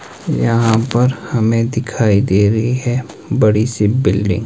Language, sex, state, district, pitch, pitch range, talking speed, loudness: Hindi, male, Himachal Pradesh, Shimla, 115 Hz, 105-125 Hz, 150 wpm, -15 LUFS